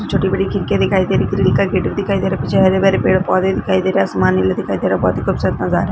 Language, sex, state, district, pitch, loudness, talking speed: Hindi, female, Bihar, Vaishali, 95 Hz, -16 LUFS, 305 wpm